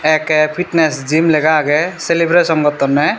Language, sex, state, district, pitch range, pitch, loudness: Chakma, male, Tripura, Dhalai, 150-165 Hz, 155 Hz, -14 LUFS